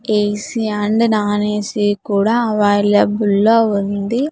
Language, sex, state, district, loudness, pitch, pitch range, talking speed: Telugu, female, Andhra Pradesh, Sri Satya Sai, -16 LUFS, 210 Hz, 205-220 Hz, 110 wpm